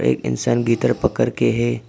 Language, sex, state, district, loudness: Hindi, male, Arunachal Pradesh, Papum Pare, -19 LUFS